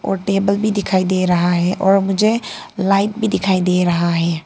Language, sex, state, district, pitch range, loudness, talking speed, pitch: Hindi, female, Arunachal Pradesh, Papum Pare, 180-200 Hz, -16 LUFS, 200 wpm, 195 Hz